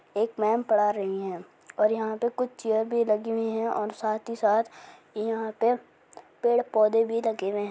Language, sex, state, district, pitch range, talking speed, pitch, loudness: Hindi, female, Rajasthan, Churu, 210-230 Hz, 200 wpm, 220 Hz, -27 LUFS